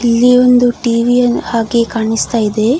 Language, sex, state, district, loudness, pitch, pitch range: Kannada, female, Karnataka, Dakshina Kannada, -12 LUFS, 235 Hz, 230-245 Hz